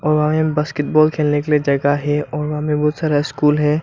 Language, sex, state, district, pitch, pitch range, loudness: Hindi, male, Arunachal Pradesh, Lower Dibang Valley, 150 Hz, 145-150 Hz, -17 LUFS